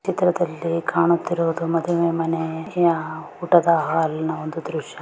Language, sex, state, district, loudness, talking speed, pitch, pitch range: Kannada, female, Karnataka, Raichur, -21 LUFS, 130 wpm, 165 Hz, 160-170 Hz